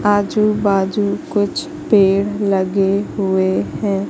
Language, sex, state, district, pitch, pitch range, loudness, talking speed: Hindi, female, Madhya Pradesh, Katni, 200 Hz, 195-210 Hz, -17 LUFS, 100 wpm